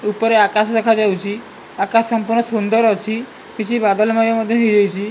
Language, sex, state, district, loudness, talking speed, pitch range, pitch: Odia, male, Odisha, Malkangiri, -16 LUFS, 140 wpm, 210-225 Hz, 225 Hz